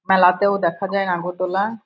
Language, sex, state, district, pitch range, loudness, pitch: Bengali, female, West Bengal, Paschim Medinipur, 180-200 Hz, -19 LUFS, 190 Hz